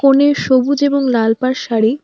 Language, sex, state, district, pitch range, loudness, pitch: Bengali, female, West Bengal, Alipurduar, 235-280 Hz, -14 LUFS, 260 Hz